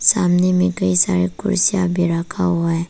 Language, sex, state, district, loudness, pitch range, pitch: Hindi, female, Arunachal Pradesh, Papum Pare, -17 LUFS, 175-190 Hz, 180 Hz